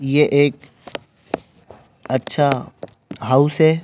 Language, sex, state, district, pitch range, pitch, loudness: Hindi, male, Madhya Pradesh, Bhopal, 125-150 Hz, 140 Hz, -18 LUFS